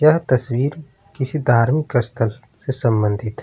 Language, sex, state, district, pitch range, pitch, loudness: Hindi, male, Bihar, Vaishali, 115-145 Hz, 130 Hz, -19 LUFS